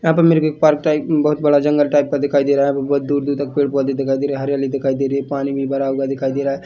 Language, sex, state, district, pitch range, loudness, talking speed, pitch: Hindi, male, Chhattisgarh, Bilaspur, 135-145 Hz, -17 LUFS, 360 wpm, 140 Hz